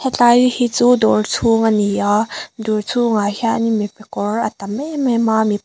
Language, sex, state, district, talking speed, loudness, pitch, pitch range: Mizo, female, Mizoram, Aizawl, 190 wpm, -16 LUFS, 225 Hz, 210-240 Hz